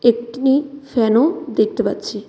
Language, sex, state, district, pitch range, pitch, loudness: Bengali, female, West Bengal, Cooch Behar, 235-285 Hz, 260 Hz, -18 LUFS